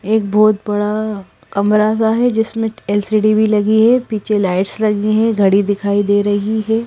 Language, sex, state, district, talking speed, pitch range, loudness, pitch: Hindi, female, Madhya Pradesh, Bhopal, 175 wpm, 205-220 Hz, -15 LUFS, 215 Hz